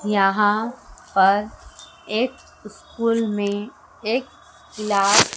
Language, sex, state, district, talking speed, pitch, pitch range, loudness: Hindi, female, Madhya Pradesh, Dhar, 90 wpm, 210 Hz, 205-230 Hz, -21 LUFS